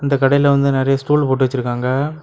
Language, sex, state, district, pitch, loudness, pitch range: Tamil, male, Tamil Nadu, Kanyakumari, 135 Hz, -16 LUFS, 130-140 Hz